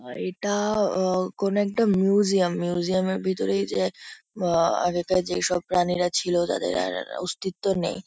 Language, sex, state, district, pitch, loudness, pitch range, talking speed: Bengali, female, West Bengal, Kolkata, 185 Hz, -24 LUFS, 175-195 Hz, 150 wpm